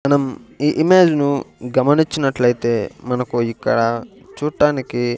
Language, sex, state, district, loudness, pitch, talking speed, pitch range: Telugu, male, Andhra Pradesh, Sri Satya Sai, -18 LUFS, 135 Hz, 95 wpm, 120-150 Hz